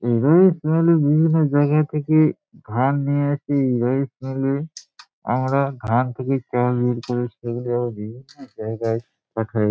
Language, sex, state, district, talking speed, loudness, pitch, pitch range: Bengali, male, West Bengal, Dakshin Dinajpur, 115 wpm, -20 LUFS, 130 Hz, 120-145 Hz